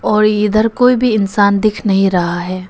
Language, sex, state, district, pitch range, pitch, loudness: Hindi, female, Arunachal Pradesh, Papum Pare, 195-215 Hz, 210 Hz, -13 LUFS